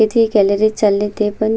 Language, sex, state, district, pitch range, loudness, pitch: Marathi, female, Maharashtra, Sindhudurg, 205-220 Hz, -15 LUFS, 215 Hz